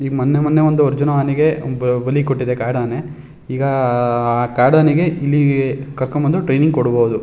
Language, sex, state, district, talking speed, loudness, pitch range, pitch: Kannada, male, Karnataka, Shimoga, 135 wpm, -16 LUFS, 125-145 Hz, 135 Hz